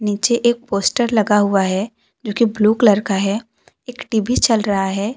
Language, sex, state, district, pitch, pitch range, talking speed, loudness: Hindi, female, Jharkhand, Deoghar, 215 Hz, 200-235 Hz, 195 wpm, -17 LUFS